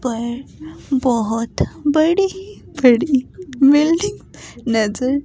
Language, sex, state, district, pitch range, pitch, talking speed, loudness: Hindi, female, Himachal Pradesh, Shimla, 235-310 Hz, 265 Hz, 70 wpm, -17 LUFS